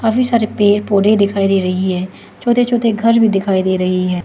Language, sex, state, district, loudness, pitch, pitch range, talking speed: Hindi, female, Arunachal Pradesh, Lower Dibang Valley, -14 LUFS, 200 Hz, 185-230 Hz, 225 wpm